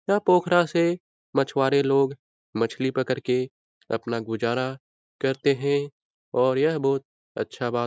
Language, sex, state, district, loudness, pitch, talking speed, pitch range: Hindi, male, Bihar, Lakhisarai, -25 LUFS, 135 Hz, 145 wpm, 125-140 Hz